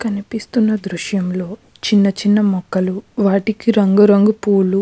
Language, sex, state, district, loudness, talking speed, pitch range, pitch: Telugu, female, Andhra Pradesh, Krishna, -16 LUFS, 135 wpm, 195-215 Hz, 205 Hz